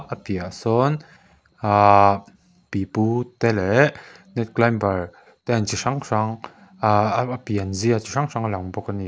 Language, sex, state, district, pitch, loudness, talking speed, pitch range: Mizo, male, Mizoram, Aizawl, 115 Hz, -21 LUFS, 160 wpm, 100-125 Hz